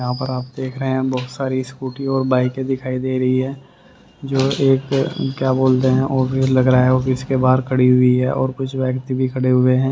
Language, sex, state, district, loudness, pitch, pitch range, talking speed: Hindi, male, Haryana, Rohtak, -18 LUFS, 130 Hz, 130-135 Hz, 220 wpm